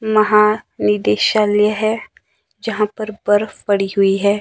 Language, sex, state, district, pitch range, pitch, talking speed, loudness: Hindi, male, Himachal Pradesh, Shimla, 200-215 Hz, 210 Hz, 110 wpm, -16 LUFS